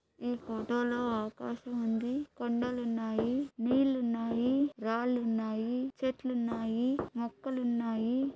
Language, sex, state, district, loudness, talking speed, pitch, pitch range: Telugu, female, Andhra Pradesh, Anantapur, -33 LUFS, 80 wpm, 240 Hz, 230-255 Hz